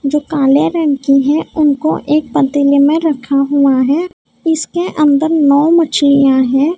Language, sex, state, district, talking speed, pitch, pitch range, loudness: Hindi, female, Maharashtra, Mumbai Suburban, 150 wpm, 290 Hz, 280-315 Hz, -12 LUFS